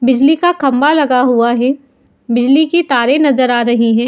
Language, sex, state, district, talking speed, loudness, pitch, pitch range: Hindi, female, Uttar Pradesh, Muzaffarnagar, 190 wpm, -12 LUFS, 260 Hz, 240-290 Hz